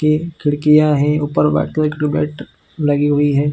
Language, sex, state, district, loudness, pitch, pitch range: Hindi, male, Chhattisgarh, Bilaspur, -16 LUFS, 150 Hz, 145-150 Hz